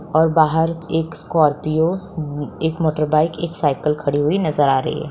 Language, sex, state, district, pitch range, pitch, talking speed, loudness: Hindi, female, Bihar, Begusarai, 150-160 Hz, 155 Hz, 175 wpm, -19 LUFS